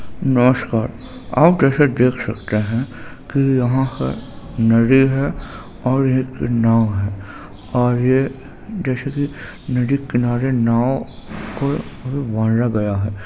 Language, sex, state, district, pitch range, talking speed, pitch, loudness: Hindi, male, Maharashtra, Chandrapur, 115-135 Hz, 120 wpm, 125 Hz, -18 LUFS